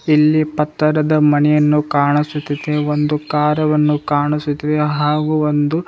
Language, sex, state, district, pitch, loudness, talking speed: Kannada, male, Karnataka, Bidar, 150 Hz, -16 LUFS, 100 wpm